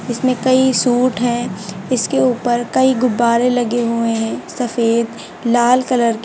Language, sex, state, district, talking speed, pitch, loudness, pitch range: Hindi, female, Uttar Pradesh, Lucknow, 145 wpm, 240 Hz, -16 LUFS, 230-250 Hz